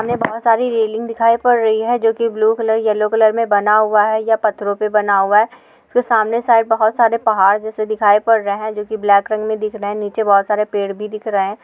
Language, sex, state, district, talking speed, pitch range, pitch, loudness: Hindi, female, Goa, North and South Goa, 270 wpm, 210-225 Hz, 215 Hz, -16 LUFS